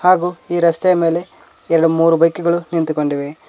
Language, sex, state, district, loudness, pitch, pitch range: Kannada, male, Karnataka, Koppal, -16 LUFS, 165 Hz, 165-175 Hz